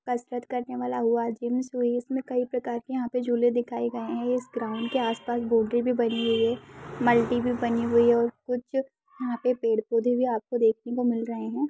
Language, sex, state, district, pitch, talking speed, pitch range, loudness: Hindi, female, Bihar, Madhepura, 240 Hz, 215 wpm, 235-250 Hz, -27 LUFS